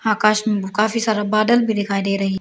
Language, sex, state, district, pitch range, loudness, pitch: Hindi, female, Arunachal Pradesh, Lower Dibang Valley, 200-220 Hz, -18 LUFS, 215 Hz